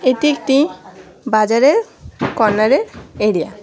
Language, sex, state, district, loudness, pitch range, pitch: Bengali, female, West Bengal, Cooch Behar, -16 LUFS, 220-295 Hz, 260 Hz